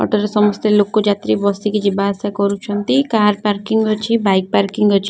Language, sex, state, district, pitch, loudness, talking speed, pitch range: Odia, female, Odisha, Khordha, 205 Hz, -16 LUFS, 165 wpm, 200-215 Hz